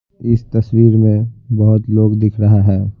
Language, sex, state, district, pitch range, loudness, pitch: Hindi, male, Bihar, Patna, 105-115 Hz, -13 LUFS, 110 Hz